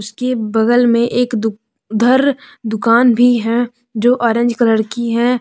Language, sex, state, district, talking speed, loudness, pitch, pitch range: Hindi, female, Jharkhand, Deoghar, 155 wpm, -14 LUFS, 235 Hz, 225-245 Hz